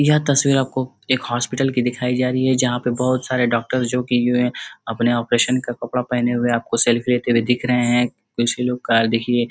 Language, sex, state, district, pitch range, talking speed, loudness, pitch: Hindi, male, Uttar Pradesh, Ghazipur, 120-125 Hz, 225 wpm, -19 LUFS, 125 Hz